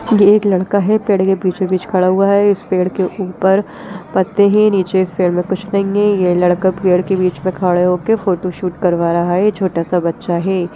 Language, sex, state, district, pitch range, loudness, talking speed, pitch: Hindi, female, Bihar, Jahanabad, 180-200 Hz, -15 LUFS, 210 wpm, 185 Hz